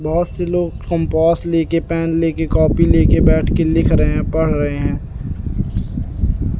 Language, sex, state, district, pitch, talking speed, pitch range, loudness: Hindi, male, Madhya Pradesh, Katni, 165 Hz, 155 wpm, 165-170 Hz, -17 LUFS